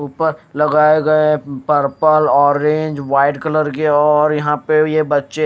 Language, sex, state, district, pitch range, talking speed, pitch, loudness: Hindi, male, Odisha, Nuapada, 145-155 Hz, 145 wpm, 150 Hz, -15 LUFS